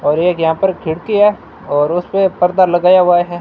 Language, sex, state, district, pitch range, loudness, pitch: Hindi, male, Rajasthan, Bikaner, 165-190 Hz, -13 LUFS, 180 Hz